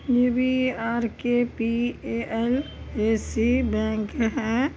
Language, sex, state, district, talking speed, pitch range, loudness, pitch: Maithili, female, Bihar, Supaul, 65 wpm, 225-250 Hz, -25 LUFS, 235 Hz